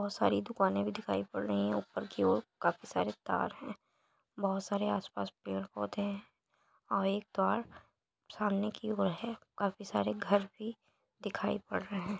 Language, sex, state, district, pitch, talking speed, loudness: Hindi, male, Uttar Pradesh, Jalaun, 200 Hz, 165 wpm, -35 LUFS